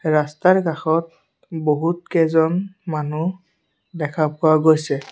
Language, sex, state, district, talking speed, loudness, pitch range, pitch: Assamese, male, Assam, Sonitpur, 95 wpm, -19 LUFS, 155-170 Hz, 160 Hz